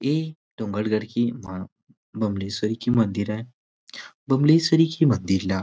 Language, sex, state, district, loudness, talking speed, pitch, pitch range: Chhattisgarhi, male, Chhattisgarh, Rajnandgaon, -23 LUFS, 130 wpm, 115 Hz, 105-140 Hz